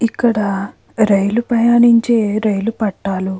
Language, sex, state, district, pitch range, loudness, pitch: Telugu, female, Andhra Pradesh, Krishna, 200-235 Hz, -15 LUFS, 215 Hz